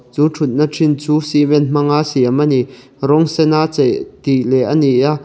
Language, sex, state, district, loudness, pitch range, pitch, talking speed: Mizo, male, Mizoram, Aizawl, -14 LUFS, 135-155 Hz, 150 Hz, 185 wpm